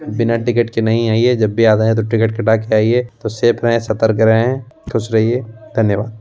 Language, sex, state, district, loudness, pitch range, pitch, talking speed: Hindi, male, Bihar, Begusarai, -15 LUFS, 110-120 Hz, 115 Hz, 215 wpm